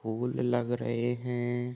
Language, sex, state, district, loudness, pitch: Hindi, male, Uttar Pradesh, Muzaffarnagar, -31 LUFS, 120 Hz